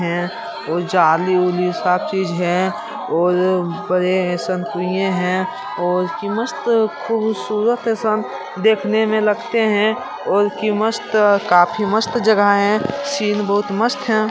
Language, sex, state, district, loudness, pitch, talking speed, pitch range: Hindi, female, Bihar, Jamui, -18 LUFS, 205 Hz, 135 wpm, 180-220 Hz